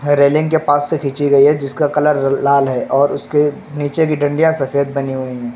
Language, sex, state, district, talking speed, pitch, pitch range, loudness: Hindi, male, Uttar Pradesh, Lucknow, 215 wpm, 145 Hz, 140-150 Hz, -15 LUFS